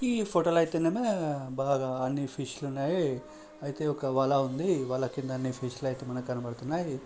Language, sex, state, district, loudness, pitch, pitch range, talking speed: Telugu, male, Andhra Pradesh, Srikakulam, -31 LUFS, 135 Hz, 130-160 Hz, 155 wpm